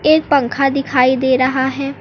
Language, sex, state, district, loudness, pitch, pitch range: Hindi, female, Uttar Pradesh, Lucknow, -15 LUFS, 270 Hz, 260-280 Hz